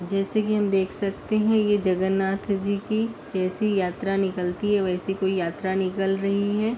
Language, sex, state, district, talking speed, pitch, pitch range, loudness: Hindi, female, Uttar Pradesh, Deoria, 175 wpm, 195 Hz, 190-205 Hz, -24 LUFS